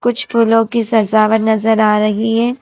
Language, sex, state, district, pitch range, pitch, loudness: Hindi, female, Madhya Pradesh, Dhar, 215-230 Hz, 225 Hz, -13 LUFS